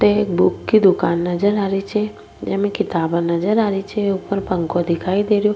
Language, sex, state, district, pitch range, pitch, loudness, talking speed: Rajasthani, female, Rajasthan, Nagaur, 175-210 Hz, 195 Hz, -19 LUFS, 215 wpm